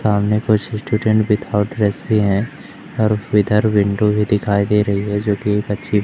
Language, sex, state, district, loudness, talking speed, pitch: Hindi, male, Madhya Pradesh, Umaria, -17 LUFS, 190 wpm, 105 Hz